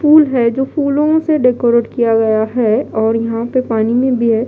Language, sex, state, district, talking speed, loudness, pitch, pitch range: Hindi, female, Bihar, Katihar, 215 wpm, -14 LUFS, 240 Hz, 225-265 Hz